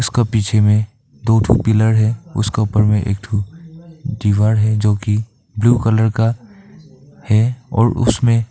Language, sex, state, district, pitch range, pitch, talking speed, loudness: Hindi, male, Arunachal Pradesh, Papum Pare, 105-120 Hz, 110 Hz, 155 wpm, -16 LUFS